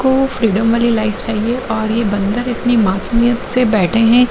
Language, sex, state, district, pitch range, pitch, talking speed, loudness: Hindi, female, Jharkhand, Jamtara, 220-245 Hz, 230 Hz, 180 wpm, -15 LUFS